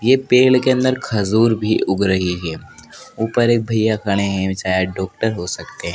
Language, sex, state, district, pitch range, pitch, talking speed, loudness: Hindi, male, Madhya Pradesh, Dhar, 95-120 Hz, 110 Hz, 190 wpm, -17 LUFS